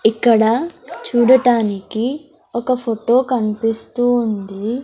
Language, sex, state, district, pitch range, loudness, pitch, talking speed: Telugu, female, Andhra Pradesh, Sri Satya Sai, 220-250 Hz, -17 LUFS, 235 Hz, 75 wpm